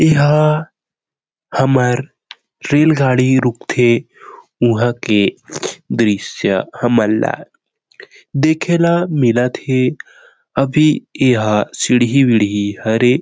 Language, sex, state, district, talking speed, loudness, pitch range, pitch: Chhattisgarhi, male, Chhattisgarh, Rajnandgaon, 80 wpm, -15 LUFS, 115-145 Hz, 125 Hz